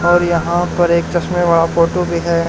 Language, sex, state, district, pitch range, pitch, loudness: Hindi, male, Haryana, Charkhi Dadri, 170-175 Hz, 170 Hz, -15 LUFS